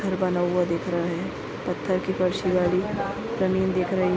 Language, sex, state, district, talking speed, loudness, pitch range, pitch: Hindi, male, Maharashtra, Nagpur, 185 wpm, -25 LUFS, 180-185 Hz, 185 Hz